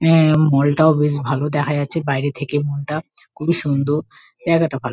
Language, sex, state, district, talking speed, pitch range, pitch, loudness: Bengali, female, West Bengal, Kolkata, 185 wpm, 145-155 Hz, 145 Hz, -18 LUFS